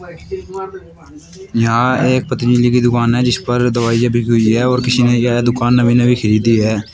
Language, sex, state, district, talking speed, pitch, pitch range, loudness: Hindi, male, Uttar Pradesh, Shamli, 180 wpm, 120 Hz, 120-125 Hz, -14 LUFS